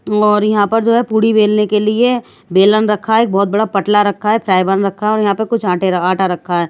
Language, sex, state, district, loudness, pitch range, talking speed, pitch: Hindi, female, Bihar, Katihar, -13 LUFS, 195-220 Hz, 250 wpm, 210 Hz